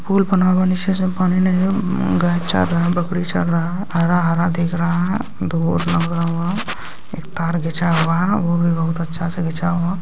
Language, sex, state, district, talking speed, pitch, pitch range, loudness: Hindi, male, Bihar, Kishanganj, 200 wpm, 175 Hz, 170-185 Hz, -18 LUFS